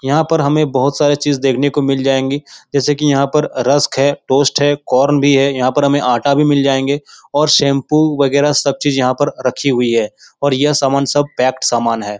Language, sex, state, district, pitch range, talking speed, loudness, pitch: Hindi, male, Bihar, Jahanabad, 135-145 Hz, 210 wpm, -14 LUFS, 140 Hz